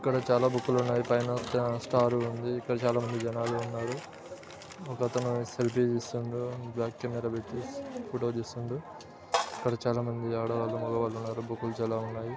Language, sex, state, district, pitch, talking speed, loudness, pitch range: Telugu, male, Andhra Pradesh, Srikakulam, 120 Hz, 135 wpm, -31 LUFS, 115-125 Hz